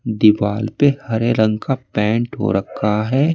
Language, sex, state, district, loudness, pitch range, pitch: Hindi, male, Uttar Pradesh, Saharanpur, -18 LUFS, 105-130 Hz, 110 Hz